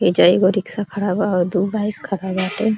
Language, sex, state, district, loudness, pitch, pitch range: Bhojpuri, female, Uttar Pradesh, Deoria, -19 LUFS, 200 Hz, 185-210 Hz